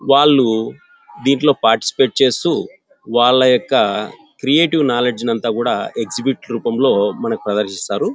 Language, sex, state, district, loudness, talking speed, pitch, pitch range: Telugu, male, Andhra Pradesh, Anantapur, -16 LUFS, 105 wpm, 125 Hz, 115-140 Hz